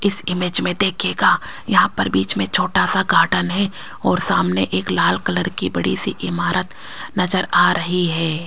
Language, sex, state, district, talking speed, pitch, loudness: Hindi, female, Rajasthan, Jaipur, 175 wpm, 165 Hz, -18 LUFS